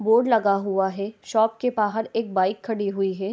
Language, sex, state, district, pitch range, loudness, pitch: Hindi, female, Bihar, Begusarai, 195-225 Hz, -23 LUFS, 210 Hz